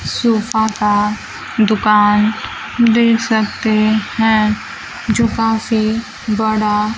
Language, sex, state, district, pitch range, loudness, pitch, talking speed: Hindi, female, Bihar, Kaimur, 215-225 Hz, -15 LUFS, 220 Hz, 75 wpm